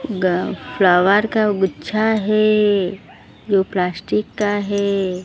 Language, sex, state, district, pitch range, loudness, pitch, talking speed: Hindi, female, Odisha, Sambalpur, 180-210 Hz, -18 LUFS, 200 Hz, 105 wpm